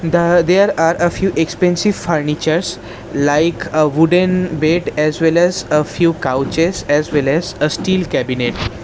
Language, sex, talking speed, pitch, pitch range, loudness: English, male, 155 wpm, 165 Hz, 150-175 Hz, -15 LUFS